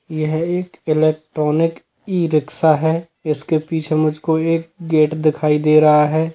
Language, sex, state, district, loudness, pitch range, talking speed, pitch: Hindi, male, Bihar, Sitamarhi, -17 LUFS, 155-165 Hz, 130 wpm, 155 Hz